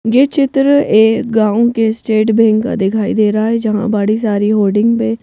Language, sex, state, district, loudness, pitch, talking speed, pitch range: Hindi, female, Madhya Pradesh, Bhopal, -13 LUFS, 220 Hz, 195 wpm, 215-230 Hz